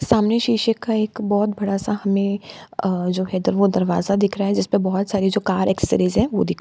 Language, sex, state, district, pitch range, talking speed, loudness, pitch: Hindi, female, Uttar Pradesh, Jalaun, 190-210 Hz, 255 wpm, -20 LUFS, 200 Hz